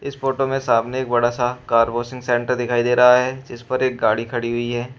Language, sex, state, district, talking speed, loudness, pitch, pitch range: Hindi, male, Uttar Pradesh, Shamli, 255 wpm, -19 LUFS, 125 Hz, 120-130 Hz